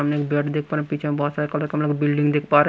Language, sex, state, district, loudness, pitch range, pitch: Hindi, male, Punjab, Pathankot, -22 LUFS, 145-150 Hz, 150 Hz